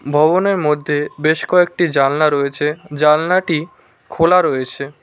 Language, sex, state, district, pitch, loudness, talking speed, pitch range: Bengali, male, West Bengal, Cooch Behar, 150 Hz, -16 LUFS, 105 wpm, 145-175 Hz